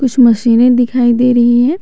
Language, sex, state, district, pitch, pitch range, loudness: Hindi, male, Jharkhand, Garhwa, 245 Hz, 240-250 Hz, -10 LUFS